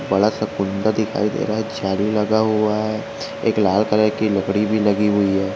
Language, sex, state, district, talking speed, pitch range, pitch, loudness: Hindi, male, Maharashtra, Aurangabad, 215 wpm, 100-110 Hz, 105 Hz, -19 LUFS